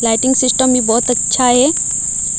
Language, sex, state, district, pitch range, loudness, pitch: Hindi, female, Odisha, Malkangiri, 235-260 Hz, -11 LUFS, 250 Hz